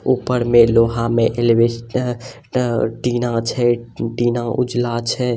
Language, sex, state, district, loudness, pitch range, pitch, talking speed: Maithili, male, Bihar, Samastipur, -18 LUFS, 115-120 Hz, 120 Hz, 125 wpm